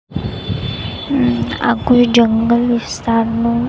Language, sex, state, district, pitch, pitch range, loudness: Gujarati, female, Gujarat, Gandhinagar, 235 Hz, 230-245 Hz, -15 LUFS